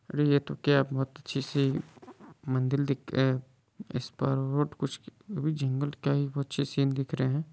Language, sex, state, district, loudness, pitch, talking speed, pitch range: Hindi, male, Bihar, Muzaffarpur, -30 LUFS, 140 Hz, 160 wpm, 135-145 Hz